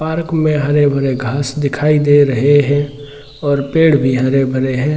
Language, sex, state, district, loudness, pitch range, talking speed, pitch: Hindi, male, Bihar, Sitamarhi, -14 LUFS, 135-150 Hz, 170 wpm, 145 Hz